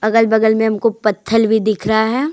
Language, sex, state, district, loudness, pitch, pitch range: Hindi, female, Jharkhand, Deoghar, -15 LUFS, 220 Hz, 220-225 Hz